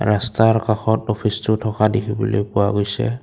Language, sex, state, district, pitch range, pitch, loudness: Assamese, male, Assam, Kamrup Metropolitan, 105-115 Hz, 110 Hz, -19 LUFS